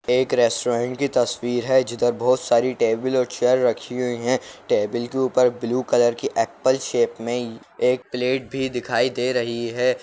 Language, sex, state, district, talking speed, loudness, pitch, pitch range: Kumaoni, male, Uttarakhand, Uttarkashi, 180 wpm, -22 LUFS, 125 Hz, 120-130 Hz